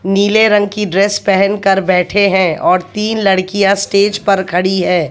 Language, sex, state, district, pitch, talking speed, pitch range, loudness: Hindi, male, Haryana, Jhajjar, 195 Hz, 175 wpm, 190-205 Hz, -12 LUFS